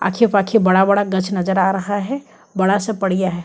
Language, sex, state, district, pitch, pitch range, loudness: Hindi, female, Chhattisgarh, Kabirdham, 195 Hz, 190-205 Hz, -17 LUFS